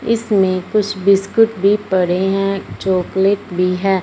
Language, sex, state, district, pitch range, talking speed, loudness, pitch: Hindi, female, Punjab, Fazilka, 185-205 Hz, 135 wpm, -16 LUFS, 195 Hz